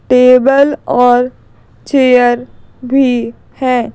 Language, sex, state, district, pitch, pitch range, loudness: Hindi, female, Madhya Pradesh, Bhopal, 250 Hz, 245-265 Hz, -11 LUFS